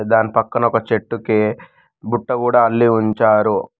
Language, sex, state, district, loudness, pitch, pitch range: Telugu, male, Telangana, Mahabubabad, -16 LUFS, 115 Hz, 110-120 Hz